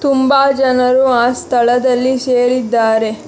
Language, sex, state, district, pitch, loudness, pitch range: Kannada, female, Karnataka, Bangalore, 250 Hz, -13 LUFS, 240-260 Hz